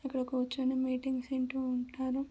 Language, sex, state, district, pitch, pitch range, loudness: Telugu, male, Andhra Pradesh, Guntur, 260 Hz, 255-265 Hz, -34 LUFS